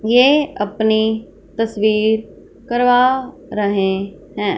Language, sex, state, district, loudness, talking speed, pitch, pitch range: Hindi, female, Punjab, Fazilka, -17 LUFS, 80 wpm, 220 Hz, 205-245 Hz